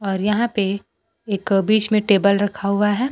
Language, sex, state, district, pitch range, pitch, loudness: Hindi, female, Bihar, Kaimur, 200-215 Hz, 205 Hz, -19 LUFS